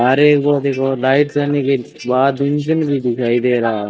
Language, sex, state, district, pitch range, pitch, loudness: Hindi, male, Rajasthan, Bikaner, 125-145 Hz, 135 Hz, -16 LUFS